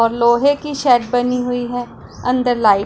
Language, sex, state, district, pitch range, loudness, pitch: Hindi, female, Punjab, Pathankot, 235-250 Hz, -17 LUFS, 245 Hz